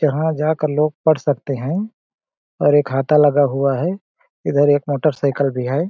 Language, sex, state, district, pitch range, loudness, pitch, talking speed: Hindi, male, Chhattisgarh, Balrampur, 140-155 Hz, -18 LUFS, 145 Hz, 175 wpm